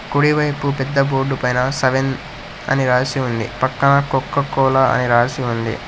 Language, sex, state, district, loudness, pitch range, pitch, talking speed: Telugu, male, Telangana, Hyderabad, -17 LUFS, 125-140 Hz, 135 Hz, 145 wpm